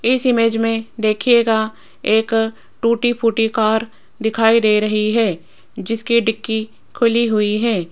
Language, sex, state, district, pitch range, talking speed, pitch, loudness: Hindi, female, Rajasthan, Jaipur, 220-230 Hz, 130 wpm, 225 Hz, -17 LUFS